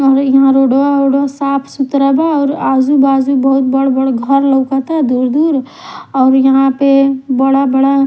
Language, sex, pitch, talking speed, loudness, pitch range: Bhojpuri, female, 275 Hz, 155 wpm, -11 LUFS, 270-275 Hz